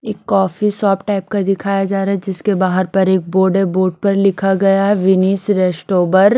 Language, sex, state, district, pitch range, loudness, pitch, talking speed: Hindi, female, Chandigarh, Chandigarh, 190-200 Hz, -15 LUFS, 195 Hz, 195 wpm